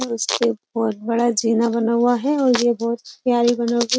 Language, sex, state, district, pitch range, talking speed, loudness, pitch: Hindi, female, Uttar Pradesh, Jyotiba Phule Nagar, 230-240 Hz, 195 wpm, -19 LUFS, 235 Hz